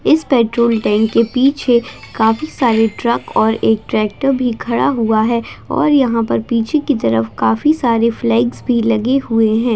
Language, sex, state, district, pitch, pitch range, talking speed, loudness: Hindi, female, Bihar, Begusarai, 235 Hz, 225-255 Hz, 170 wpm, -15 LUFS